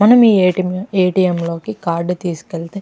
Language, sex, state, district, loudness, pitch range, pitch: Telugu, female, Andhra Pradesh, Krishna, -16 LUFS, 170-200 Hz, 185 Hz